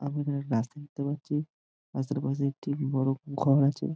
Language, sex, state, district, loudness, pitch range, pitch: Bengali, male, West Bengal, Dakshin Dinajpur, -30 LUFS, 135-145 Hz, 140 Hz